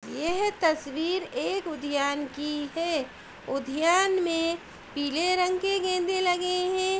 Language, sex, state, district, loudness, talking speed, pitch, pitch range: Hindi, female, Uttar Pradesh, Ghazipur, -27 LUFS, 120 wpm, 340 Hz, 295-370 Hz